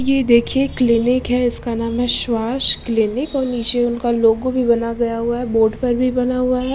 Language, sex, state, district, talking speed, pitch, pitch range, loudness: Hindi, female, Maharashtra, Aurangabad, 205 wpm, 240 Hz, 230-255 Hz, -17 LUFS